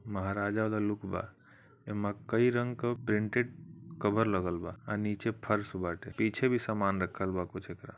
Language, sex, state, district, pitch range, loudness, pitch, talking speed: Bhojpuri, male, Uttar Pradesh, Varanasi, 100-120 Hz, -33 LUFS, 105 Hz, 180 wpm